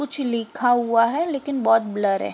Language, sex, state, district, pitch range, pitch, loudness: Hindi, female, Uttar Pradesh, Varanasi, 225-280 Hz, 240 Hz, -20 LUFS